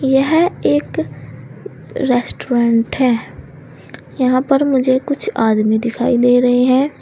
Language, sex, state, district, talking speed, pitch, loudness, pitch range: Hindi, female, Uttar Pradesh, Saharanpur, 110 wpm, 255 Hz, -15 LUFS, 240-270 Hz